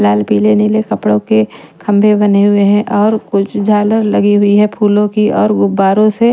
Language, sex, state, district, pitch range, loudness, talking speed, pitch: Hindi, female, Punjab, Pathankot, 155-210 Hz, -11 LUFS, 190 wpm, 205 Hz